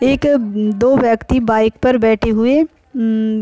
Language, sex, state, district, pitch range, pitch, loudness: Hindi, female, Bihar, Kishanganj, 220-260 Hz, 230 Hz, -15 LUFS